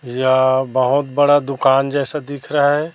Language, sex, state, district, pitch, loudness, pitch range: Hindi, male, Chhattisgarh, Raipur, 140 Hz, -16 LUFS, 130-145 Hz